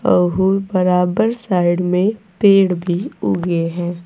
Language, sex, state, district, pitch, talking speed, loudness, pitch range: Hindi, female, Uttar Pradesh, Saharanpur, 180 Hz, 105 wpm, -16 LUFS, 175-195 Hz